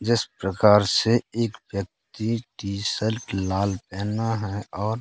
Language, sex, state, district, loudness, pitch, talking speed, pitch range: Hindi, male, Madhya Pradesh, Katni, -24 LUFS, 105 Hz, 120 wpm, 100-115 Hz